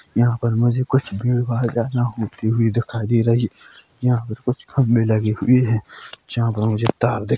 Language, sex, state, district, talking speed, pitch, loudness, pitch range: Hindi, male, Chhattisgarh, Korba, 205 wpm, 115 Hz, -20 LUFS, 110-120 Hz